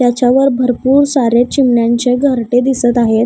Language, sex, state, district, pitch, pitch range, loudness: Marathi, female, Maharashtra, Gondia, 250 Hz, 240-265 Hz, -12 LUFS